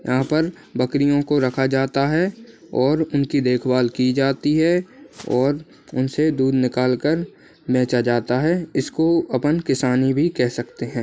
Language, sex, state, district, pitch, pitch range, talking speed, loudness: Hindi, male, Bihar, Bhagalpur, 135 Hz, 125-155 Hz, 150 wpm, -20 LUFS